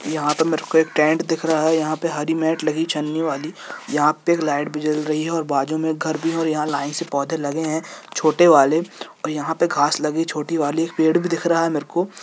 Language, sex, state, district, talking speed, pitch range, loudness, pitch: Hindi, male, Jharkhand, Jamtara, 265 wpm, 150-165 Hz, -20 LUFS, 160 Hz